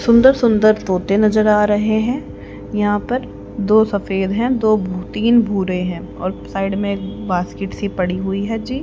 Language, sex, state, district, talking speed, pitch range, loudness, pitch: Hindi, female, Haryana, Rohtak, 165 wpm, 195-220 Hz, -17 LUFS, 205 Hz